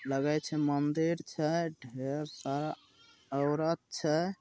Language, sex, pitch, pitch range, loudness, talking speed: Bhojpuri, male, 150 Hz, 140-160 Hz, -33 LUFS, 110 wpm